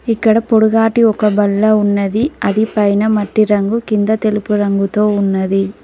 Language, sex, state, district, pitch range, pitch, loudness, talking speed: Telugu, female, Telangana, Mahabubabad, 205-220 Hz, 210 Hz, -14 LUFS, 135 wpm